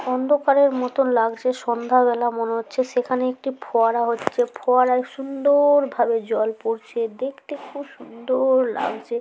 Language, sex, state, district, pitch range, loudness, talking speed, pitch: Bengali, female, West Bengal, Jhargram, 235-270 Hz, -21 LUFS, 125 wpm, 255 Hz